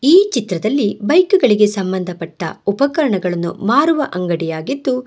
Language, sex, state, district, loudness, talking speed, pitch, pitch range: Kannada, female, Karnataka, Bangalore, -16 LUFS, 120 wpm, 205 Hz, 180-285 Hz